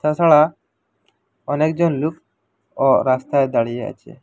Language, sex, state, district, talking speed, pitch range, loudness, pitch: Bengali, male, Assam, Hailakandi, 100 wpm, 140-155 Hz, -18 LUFS, 150 Hz